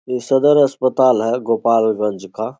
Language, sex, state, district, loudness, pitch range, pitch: Hindi, male, Bihar, Saharsa, -16 LUFS, 110-130 Hz, 120 Hz